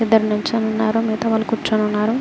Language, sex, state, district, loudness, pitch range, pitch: Telugu, female, Andhra Pradesh, Srikakulam, -19 LUFS, 215-225 Hz, 220 Hz